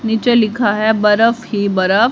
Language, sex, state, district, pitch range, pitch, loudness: Hindi, female, Haryana, Rohtak, 205-235 Hz, 220 Hz, -14 LUFS